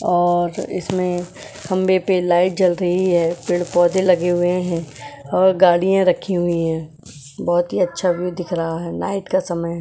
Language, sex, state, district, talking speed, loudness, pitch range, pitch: Hindi, female, Goa, North and South Goa, 165 wpm, -19 LUFS, 170-185 Hz, 175 Hz